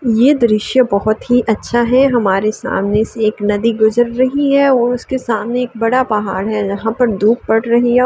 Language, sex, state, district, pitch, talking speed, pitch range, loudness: Hindi, female, Uttar Pradesh, Varanasi, 230 Hz, 215 wpm, 215-250 Hz, -14 LUFS